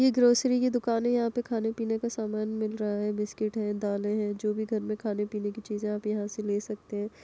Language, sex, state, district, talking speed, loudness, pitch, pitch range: Hindi, female, Uttar Pradesh, Etah, 275 wpm, -29 LUFS, 215 Hz, 210-225 Hz